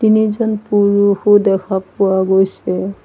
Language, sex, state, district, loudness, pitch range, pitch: Assamese, female, Assam, Sonitpur, -14 LUFS, 190-210 Hz, 200 Hz